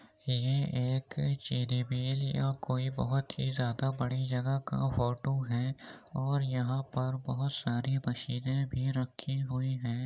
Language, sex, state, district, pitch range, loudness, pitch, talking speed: Hindi, male, Uttar Pradesh, Muzaffarnagar, 125-135 Hz, -33 LUFS, 130 Hz, 130 wpm